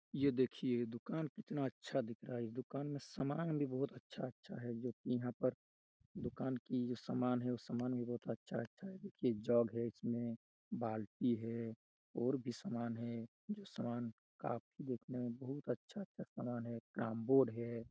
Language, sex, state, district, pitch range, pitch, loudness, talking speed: Hindi, male, Chhattisgarh, Raigarh, 120-135 Hz, 125 Hz, -42 LUFS, 165 wpm